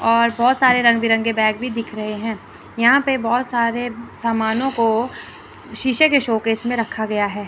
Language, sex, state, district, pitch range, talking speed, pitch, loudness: Hindi, female, Chandigarh, Chandigarh, 225-245 Hz, 185 wpm, 230 Hz, -18 LUFS